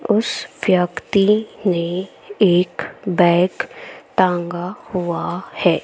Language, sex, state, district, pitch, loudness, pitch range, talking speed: Hindi, female, Haryana, Jhajjar, 185 Hz, -19 LUFS, 175-205 Hz, 80 wpm